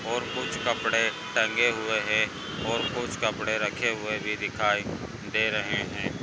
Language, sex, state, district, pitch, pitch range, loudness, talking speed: Hindi, male, Maharashtra, Pune, 105 Hz, 105-110 Hz, -27 LUFS, 155 wpm